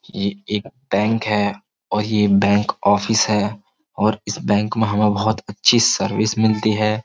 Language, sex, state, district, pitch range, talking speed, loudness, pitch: Hindi, male, Uttar Pradesh, Jyotiba Phule Nagar, 100-110 Hz, 160 wpm, -19 LUFS, 105 Hz